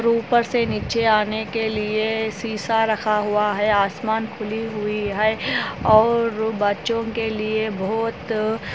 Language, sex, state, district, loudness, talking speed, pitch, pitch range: Hindi, female, Andhra Pradesh, Anantapur, -21 LUFS, 50 wpm, 220 Hz, 210-225 Hz